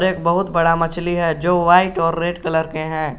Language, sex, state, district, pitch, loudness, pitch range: Hindi, male, Jharkhand, Garhwa, 170 Hz, -18 LUFS, 165-175 Hz